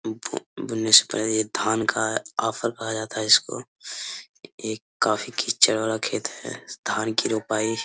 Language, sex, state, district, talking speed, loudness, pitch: Hindi, male, Jharkhand, Sahebganj, 170 wpm, -23 LUFS, 110 Hz